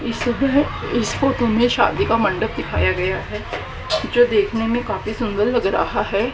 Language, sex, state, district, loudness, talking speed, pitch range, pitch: Hindi, female, Haryana, Rohtak, -19 LUFS, 170 wpm, 220-245 Hz, 240 Hz